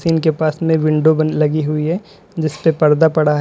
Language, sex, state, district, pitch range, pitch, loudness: Hindi, male, Uttar Pradesh, Lalitpur, 155-160 Hz, 155 Hz, -16 LUFS